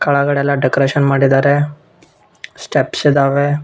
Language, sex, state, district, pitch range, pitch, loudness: Kannada, male, Karnataka, Bellary, 140-145 Hz, 140 Hz, -14 LUFS